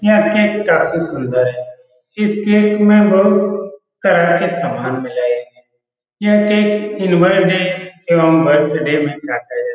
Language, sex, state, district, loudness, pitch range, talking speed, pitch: Hindi, male, Bihar, Saran, -14 LUFS, 145-210 Hz, 135 wpm, 185 Hz